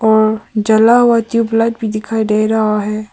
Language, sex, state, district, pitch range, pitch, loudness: Hindi, male, Arunachal Pradesh, Papum Pare, 215-230 Hz, 220 Hz, -13 LUFS